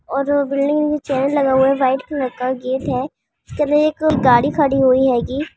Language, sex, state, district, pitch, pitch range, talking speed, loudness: Hindi, female, Maharashtra, Solapur, 275 Hz, 260-290 Hz, 225 wpm, -17 LUFS